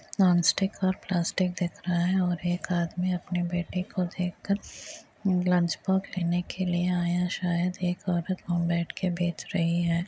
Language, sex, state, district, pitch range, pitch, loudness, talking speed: Hindi, female, Bihar, Muzaffarpur, 175-185 Hz, 180 Hz, -28 LUFS, 165 wpm